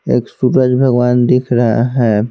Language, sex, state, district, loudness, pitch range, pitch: Hindi, male, Bihar, Patna, -13 LUFS, 120-125 Hz, 125 Hz